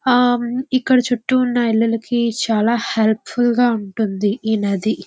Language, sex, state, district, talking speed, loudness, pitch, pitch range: Telugu, female, Andhra Pradesh, Visakhapatnam, 165 wpm, -18 LUFS, 235 Hz, 220-245 Hz